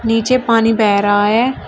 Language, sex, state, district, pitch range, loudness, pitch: Hindi, female, Uttar Pradesh, Shamli, 210-235 Hz, -13 LUFS, 225 Hz